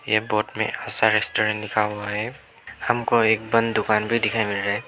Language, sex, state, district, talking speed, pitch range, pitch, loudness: Hindi, male, Arunachal Pradesh, Lower Dibang Valley, 210 wpm, 105-115 Hz, 110 Hz, -22 LUFS